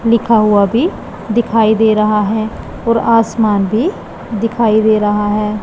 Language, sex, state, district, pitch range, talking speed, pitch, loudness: Hindi, female, Punjab, Pathankot, 210-230 Hz, 150 wpm, 220 Hz, -13 LUFS